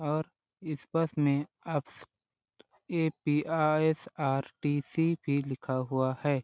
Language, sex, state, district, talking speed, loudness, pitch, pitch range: Hindi, male, Chhattisgarh, Balrampur, 100 wpm, -31 LUFS, 150 Hz, 140-160 Hz